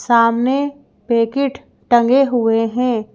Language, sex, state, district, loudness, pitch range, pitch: Hindi, female, Madhya Pradesh, Bhopal, -16 LUFS, 230-265 Hz, 240 Hz